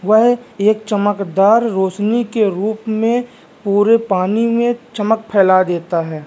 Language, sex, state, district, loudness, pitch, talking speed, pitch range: Hindi, male, Bihar, Vaishali, -15 LUFS, 215 Hz, 135 wpm, 195-230 Hz